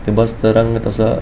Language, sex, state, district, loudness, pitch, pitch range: Marathi, male, Goa, North and South Goa, -15 LUFS, 115 Hz, 110-115 Hz